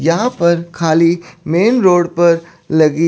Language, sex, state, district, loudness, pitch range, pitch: Hindi, male, Chandigarh, Chandigarh, -14 LUFS, 165-175 Hz, 170 Hz